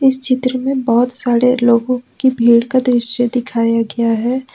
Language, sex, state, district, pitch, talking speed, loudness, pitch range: Hindi, female, Jharkhand, Ranchi, 245 Hz, 170 wpm, -15 LUFS, 235-255 Hz